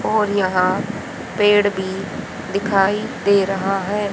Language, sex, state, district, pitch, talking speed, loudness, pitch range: Hindi, female, Haryana, Jhajjar, 200 Hz, 115 wpm, -19 LUFS, 195-205 Hz